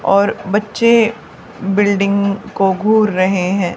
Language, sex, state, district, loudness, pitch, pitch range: Hindi, female, Haryana, Charkhi Dadri, -15 LUFS, 200 Hz, 195-215 Hz